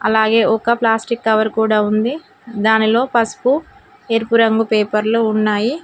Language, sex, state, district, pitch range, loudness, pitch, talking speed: Telugu, female, Telangana, Mahabubabad, 220-235 Hz, -16 LUFS, 225 Hz, 125 wpm